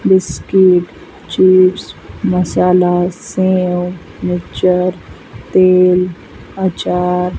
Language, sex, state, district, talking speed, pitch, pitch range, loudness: Hindi, female, Madhya Pradesh, Dhar, 65 wpm, 180 Hz, 180-185 Hz, -13 LUFS